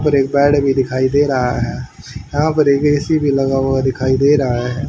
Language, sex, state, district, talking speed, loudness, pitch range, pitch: Hindi, male, Haryana, Charkhi Dadri, 235 wpm, -15 LUFS, 130-145 Hz, 135 Hz